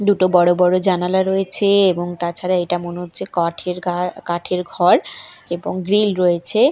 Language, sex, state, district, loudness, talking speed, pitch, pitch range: Bengali, female, Odisha, Malkangiri, -18 LUFS, 150 wpm, 180 Hz, 175-190 Hz